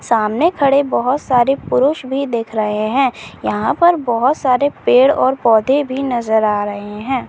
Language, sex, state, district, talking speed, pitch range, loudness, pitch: Chhattisgarhi, female, Chhattisgarh, Kabirdham, 170 wpm, 225-275 Hz, -15 LUFS, 255 Hz